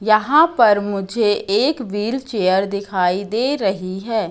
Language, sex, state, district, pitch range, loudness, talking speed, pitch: Hindi, female, Madhya Pradesh, Katni, 195-245 Hz, -18 LUFS, 140 wpm, 210 Hz